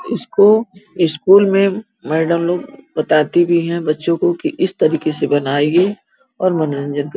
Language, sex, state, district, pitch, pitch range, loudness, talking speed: Hindi, female, Uttar Pradesh, Gorakhpur, 170 Hz, 155-195 Hz, -16 LUFS, 160 wpm